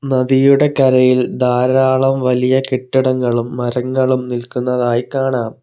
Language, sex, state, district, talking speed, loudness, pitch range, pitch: Malayalam, male, Kerala, Kollam, 85 wpm, -15 LUFS, 125-130 Hz, 130 Hz